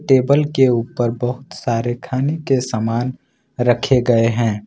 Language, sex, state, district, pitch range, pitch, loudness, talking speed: Hindi, male, Jharkhand, Ranchi, 115-135 Hz, 125 Hz, -18 LUFS, 140 wpm